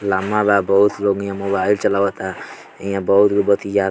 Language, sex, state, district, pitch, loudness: Bhojpuri, male, Bihar, Muzaffarpur, 100 Hz, -17 LUFS